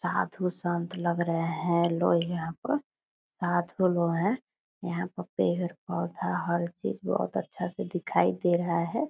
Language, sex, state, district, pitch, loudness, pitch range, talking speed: Hindi, female, Bihar, Purnia, 175 Hz, -29 LUFS, 170-180 Hz, 145 wpm